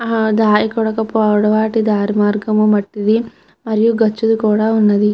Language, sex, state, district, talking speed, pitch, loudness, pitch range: Telugu, female, Andhra Pradesh, Chittoor, 140 wpm, 215 Hz, -15 LUFS, 210-220 Hz